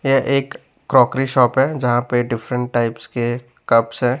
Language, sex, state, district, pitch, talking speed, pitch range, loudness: Hindi, male, Bihar, West Champaran, 125 Hz, 170 wpm, 120-135 Hz, -18 LUFS